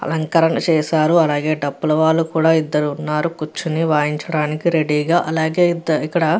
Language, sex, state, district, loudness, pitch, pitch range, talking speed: Telugu, female, Andhra Pradesh, Guntur, -17 LUFS, 160 Hz, 150-165 Hz, 150 wpm